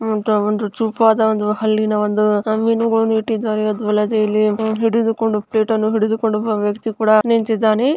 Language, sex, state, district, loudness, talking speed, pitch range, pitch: Kannada, female, Karnataka, Chamarajanagar, -17 LUFS, 150 wpm, 215-225 Hz, 220 Hz